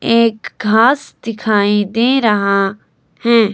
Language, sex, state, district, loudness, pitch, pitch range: Hindi, female, Himachal Pradesh, Shimla, -14 LUFS, 220 Hz, 205-230 Hz